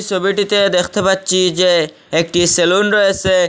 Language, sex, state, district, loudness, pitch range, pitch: Bengali, male, Assam, Hailakandi, -14 LUFS, 175-200 Hz, 185 Hz